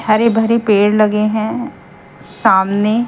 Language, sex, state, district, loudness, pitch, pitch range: Hindi, female, Haryana, Jhajjar, -14 LUFS, 215 Hz, 210-230 Hz